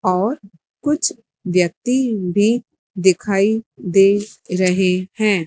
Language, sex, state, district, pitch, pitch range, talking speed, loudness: Hindi, female, Madhya Pradesh, Dhar, 200 Hz, 185-225 Hz, 90 wpm, -18 LUFS